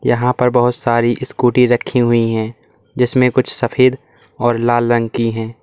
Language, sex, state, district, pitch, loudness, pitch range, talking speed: Hindi, male, Uttar Pradesh, Lalitpur, 120 Hz, -14 LUFS, 115-125 Hz, 170 wpm